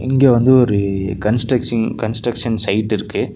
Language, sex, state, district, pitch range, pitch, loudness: Tamil, male, Tamil Nadu, Nilgiris, 105-125 Hz, 115 Hz, -16 LUFS